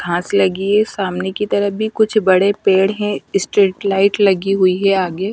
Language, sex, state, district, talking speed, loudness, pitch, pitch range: Hindi, female, Bihar, West Champaran, 190 wpm, -16 LUFS, 195 Hz, 190-205 Hz